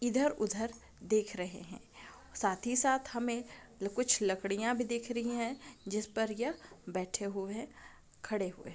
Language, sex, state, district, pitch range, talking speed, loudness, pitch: Hindi, female, Jharkhand, Jamtara, 200-240 Hz, 170 wpm, -35 LUFS, 225 Hz